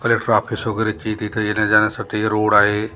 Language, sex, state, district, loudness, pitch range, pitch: Marathi, male, Maharashtra, Gondia, -18 LUFS, 105-110 Hz, 105 Hz